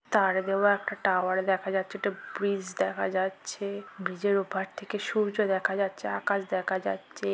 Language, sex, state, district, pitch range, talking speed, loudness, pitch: Bengali, female, West Bengal, North 24 Parganas, 185-200 Hz, 155 wpm, -29 LUFS, 195 Hz